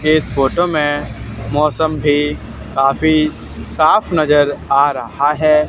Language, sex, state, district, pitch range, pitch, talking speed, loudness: Hindi, male, Haryana, Charkhi Dadri, 135-155 Hz, 145 Hz, 115 wpm, -15 LUFS